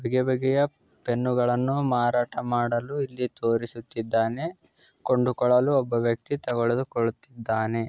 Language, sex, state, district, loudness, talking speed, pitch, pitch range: Kannada, male, Karnataka, Dakshina Kannada, -26 LUFS, 90 wpm, 120 Hz, 115-130 Hz